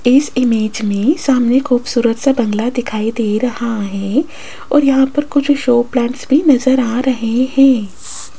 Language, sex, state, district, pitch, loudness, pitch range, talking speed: Hindi, female, Rajasthan, Jaipur, 245 Hz, -14 LUFS, 230-270 Hz, 155 wpm